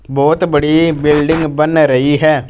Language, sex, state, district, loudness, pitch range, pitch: Hindi, male, Punjab, Fazilka, -12 LUFS, 145-155 Hz, 150 Hz